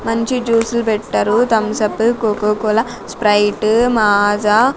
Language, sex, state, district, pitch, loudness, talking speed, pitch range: Telugu, female, Andhra Pradesh, Sri Satya Sai, 220 Hz, -15 LUFS, 115 wpm, 210-230 Hz